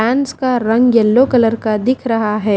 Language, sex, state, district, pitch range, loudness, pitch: Hindi, female, Haryana, Jhajjar, 220-255 Hz, -14 LUFS, 230 Hz